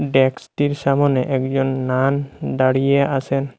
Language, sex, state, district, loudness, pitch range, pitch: Bengali, male, Assam, Hailakandi, -19 LUFS, 130-140 Hz, 135 Hz